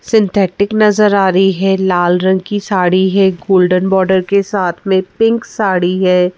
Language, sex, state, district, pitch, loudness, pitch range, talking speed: Hindi, female, Madhya Pradesh, Bhopal, 190 Hz, -12 LUFS, 185-200 Hz, 170 wpm